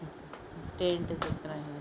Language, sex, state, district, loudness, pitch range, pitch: Hindi, female, Maharashtra, Aurangabad, -35 LUFS, 150-170 Hz, 160 Hz